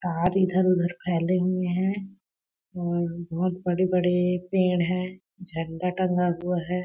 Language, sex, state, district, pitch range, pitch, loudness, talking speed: Hindi, female, Chhattisgarh, Balrampur, 175-185 Hz, 180 Hz, -26 LUFS, 130 wpm